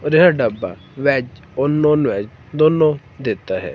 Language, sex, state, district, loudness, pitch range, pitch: Hindi, male, Himachal Pradesh, Shimla, -17 LUFS, 125-150 Hz, 140 Hz